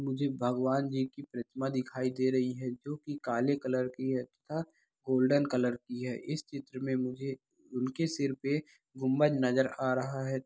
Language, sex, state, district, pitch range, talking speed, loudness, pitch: Hindi, male, Bihar, Saharsa, 130-140 Hz, 185 wpm, -33 LUFS, 130 Hz